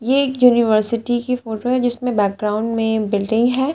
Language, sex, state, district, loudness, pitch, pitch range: Hindi, female, Delhi, New Delhi, -18 LUFS, 235 Hz, 220-250 Hz